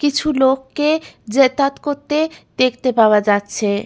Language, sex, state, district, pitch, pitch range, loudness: Bengali, female, West Bengal, Malda, 265 Hz, 220-295 Hz, -17 LUFS